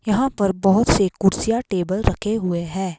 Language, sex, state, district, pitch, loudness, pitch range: Hindi, female, Himachal Pradesh, Shimla, 195 Hz, -20 LUFS, 185-215 Hz